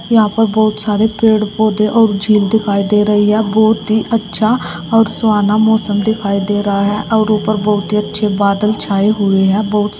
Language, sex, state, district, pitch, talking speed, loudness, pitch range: Hindi, female, Uttar Pradesh, Shamli, 210 Hz, 200 wpm, -13 LUFS, 205-220 Hz